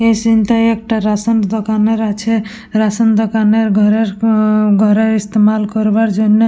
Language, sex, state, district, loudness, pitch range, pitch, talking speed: Bengali, female, West Bengal, Purulia, -13 LUFS, 215-225 Hz, 220 Hz, 140 wpm